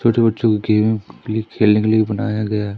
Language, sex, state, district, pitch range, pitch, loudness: Hindi, male, Madhya Pradesh, Umaria, 105-110 Hz, 110 Hz, -17 LUFS